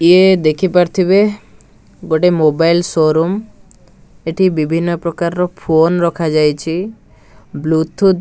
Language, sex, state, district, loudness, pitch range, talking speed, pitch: Odia, male, Odisha, Nuapada, -14 LUFS, 160-185 Hz, 95 wpm, 170 Hz